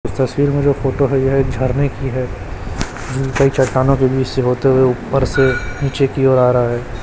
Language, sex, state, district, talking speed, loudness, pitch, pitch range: Hindi, male, Chhattisgarh, Raipur, 230 wpm, -16 LUFS, 130 Hz, 125-135 Hz